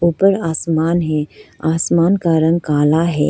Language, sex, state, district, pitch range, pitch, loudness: Hindi, female, Arunachal Pradesh, Lower Dibang Valley, 160-170 Hz, 165 Hz, -16 LUFS